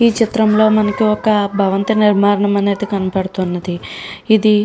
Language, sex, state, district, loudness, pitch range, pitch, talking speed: Telugu, female, Andhra Pradesh, Srikakulam, -15 LUFS, 200-215 Hz, 210 Hz, 130 wpm